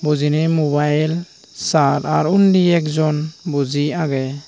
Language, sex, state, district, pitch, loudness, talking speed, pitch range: Chakma, male, Tripura, Unakoti, 150 Hz, -17 LUFS, 105 wpm, 145-160 Hz